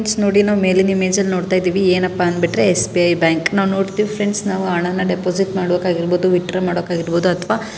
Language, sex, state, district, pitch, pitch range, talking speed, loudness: Kannada, female, Karnataka, Gulbarga, 185 Hz, 180-195 Hz, 180 wpm, -17 LUFS